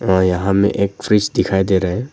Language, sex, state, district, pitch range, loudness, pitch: Hindi, male, Arunachal Pradesh, Longding, 95-105 Hz, -16 LUFS, 100 Hz